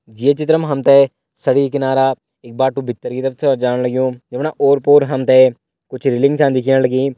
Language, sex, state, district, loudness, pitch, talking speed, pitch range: Hindi, male, Uttarakhand, Tehri Garhwal, -15 LUFS, 135 Hz, 210 wpm, 130-140 Hz